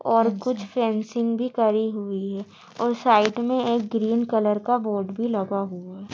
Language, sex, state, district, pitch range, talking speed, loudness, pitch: Hindi, female, Madhya Pradesh, Bhopal, 200-235 Hz, 185 wpm, -24 LUFS, 220 Hz